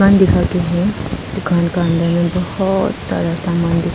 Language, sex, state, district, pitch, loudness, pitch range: Hindi, female, Arunachal Pradesh, Papum Pare, 175 Hz, -16 LUFS, 170-190 Hz